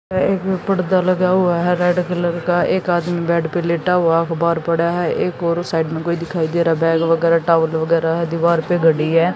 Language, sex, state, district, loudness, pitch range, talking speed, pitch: Hindi, female, Haryana, Jhajjar, -17 LUFS, 165-180 Hz, 220 wpm, 170 Hz